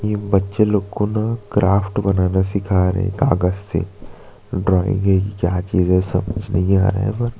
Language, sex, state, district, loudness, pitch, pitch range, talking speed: Hindi, male, Chhattisgarh, Sukma, -18 LUFS, 95 Hz, 95-105 Hz, 185 wpm